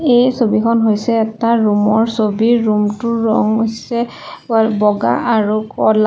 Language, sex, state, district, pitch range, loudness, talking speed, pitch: Assamese, female, Assam, Sonitpur, 215-230 Hz, -15 LUFS, 140 wpm, 225 Hz